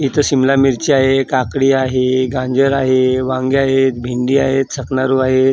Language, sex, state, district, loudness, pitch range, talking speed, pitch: Marathi, male, Maharashtra, Gondia, -14 LUFS, 130-135 Hz, 140 wpm, 130 Hz